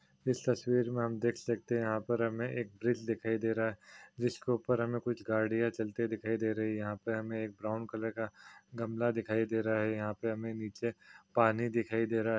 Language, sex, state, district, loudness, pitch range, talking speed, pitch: Hindi, male, Chhattisgarh, Rajnandgaon, -35 LUFS, 110-120 Hz, 210 wpm, 115 Hz